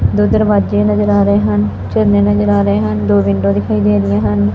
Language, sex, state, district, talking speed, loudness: Punjabi, female, Punjab, Fazilka, 210 wpm, -13 LUFS